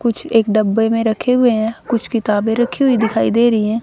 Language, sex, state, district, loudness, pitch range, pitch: Hindi, female, Haryana, Rohtak, -16 LUFS, 220-240 Hz, 225 Hz